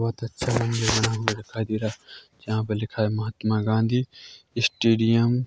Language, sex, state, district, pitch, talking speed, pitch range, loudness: Hindi, male, Chhattisgarh, Korba, 110 Hz, 155 wpm, 110-115 Hz, -24 LUFS